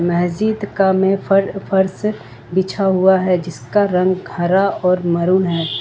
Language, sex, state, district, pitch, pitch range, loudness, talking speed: Hindi, female, Jharkhand, Ranchi, 185 Hz, 175-195 Hz, -17 LUFS, 145 wpm